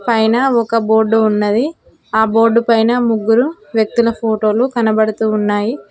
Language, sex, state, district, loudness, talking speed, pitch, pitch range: Telugu, female, Telangana, Mahabubabad, -14 LUFS, 120 wpm, 225 Hz, 220-235 Hz